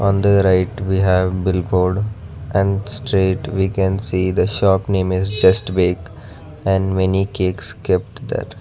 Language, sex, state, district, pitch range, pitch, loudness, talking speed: English, male, Karnataka, Bangalore, 90-100 Hz, 95 Hz, -18 LUFS, 160 wpm